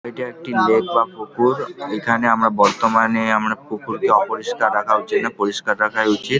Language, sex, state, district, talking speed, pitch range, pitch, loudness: Bengali, male, West Bengal, Paschim Medinipur, 180 wpm, 110-125 Hz, 115 Hz, -18 LUFS